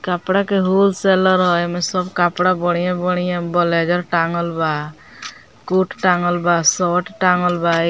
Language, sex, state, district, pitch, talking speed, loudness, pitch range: Bhojpuri, female, Bihar, Muzaffarpur, 180 Hz, 145 wpm, -17 LUFS, 175-185 Hz